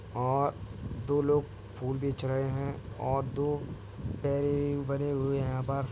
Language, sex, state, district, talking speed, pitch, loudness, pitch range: Hindi, male, Uttar Pradesh, Hamirpur, 140 wpm, 135 Hz, -32 LUFS, 115-140 Hz